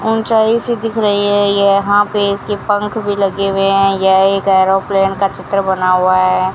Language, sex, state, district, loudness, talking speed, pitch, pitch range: Hindi, female, Rajasthan, Bikaner, -13 LUFS, 190 wpm, 200 Hz, 195-205 Hz